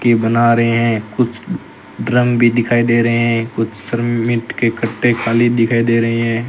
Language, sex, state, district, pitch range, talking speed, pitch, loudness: Hindi, male, Rajasthan, Bikaner, 115-120 Hz, 185 wpm, 115 Hz, -15 LUFS